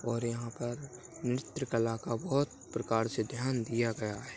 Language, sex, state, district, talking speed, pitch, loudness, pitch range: Hindi, male, Bihar, Darbhanga, 190 wpm, 120 Hz, -34 LUFS, 115-130 Hz